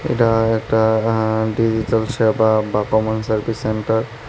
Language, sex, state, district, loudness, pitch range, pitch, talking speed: Bengali, male, Tripura, West Tripura, -18 LUFS, 110-115 Hz, 110 Hz, 140 wpm